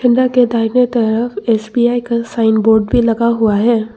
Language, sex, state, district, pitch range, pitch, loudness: Hindi, female, Arunachal Pradesh, Longding, 220-240 Hz, 235 Hz, -14 LUFS